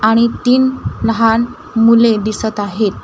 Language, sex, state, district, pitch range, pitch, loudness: Marathi, female, Maharashtra, Gondia, 215-235 Hz, 225 Hz, -14 LUFS